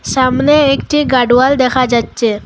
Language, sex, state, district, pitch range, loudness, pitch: Bengali, female, Assam, Hailakandi, 245-275 Hz, -12 LUFS, 255 Hz